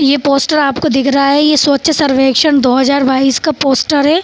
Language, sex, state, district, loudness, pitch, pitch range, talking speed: Hindi, female, Bihar, Saharsa, -11 LUFS, 280 Hz, 270-300 Hz, 210 wpm